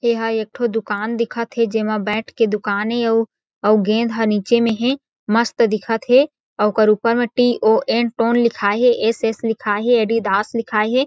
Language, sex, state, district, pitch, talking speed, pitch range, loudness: Chhattisgarhi, female, Chhattisgarh, Jashpur, 225 Hz, 195 wpm, 215-235 Hz, -18 LUFS